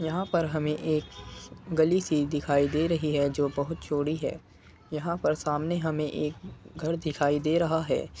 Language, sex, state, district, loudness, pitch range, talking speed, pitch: Hindi, male, Uttar Pradesh, Muzaffarnagar, -28 LUFS, 145-160 Hz, 190 wpm, 150 Hz